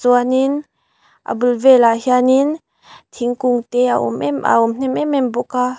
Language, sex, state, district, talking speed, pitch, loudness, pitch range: Mizo, female, Mizoram, Aizawl, 175 wpm, 250 Hz, -16 LUFS, 245-260 Hz